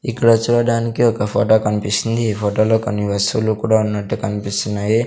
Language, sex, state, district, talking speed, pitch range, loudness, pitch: Telugu, male, Andhra Pradesh, Sri Satya Sai, 140 wpm, 105-115 Hz, -17 LUFS, 110 Hz